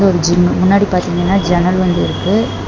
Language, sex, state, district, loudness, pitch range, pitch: Tamil, female, Tamil Nadu, Namakkal, -13 LUFS, 175-195 Hz, 180 Hz